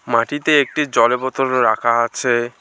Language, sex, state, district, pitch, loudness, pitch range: Bengali, male, West Bengal, Alipurduar, 125 Hz, -17 LUFS, 115-140 Hz